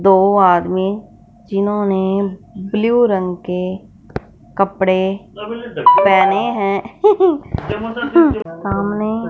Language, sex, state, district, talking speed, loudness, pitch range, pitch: Hindi, female, Punjab, Fazilka, 65 wpm, -16 LUFS, 190-225 Hz, 200 Hz